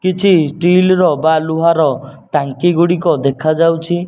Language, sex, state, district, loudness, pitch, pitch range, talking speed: Odia, male, Odisha, Nuapada, -13 LUFS, 165 Hz, 155-175 Hz, 145 wpm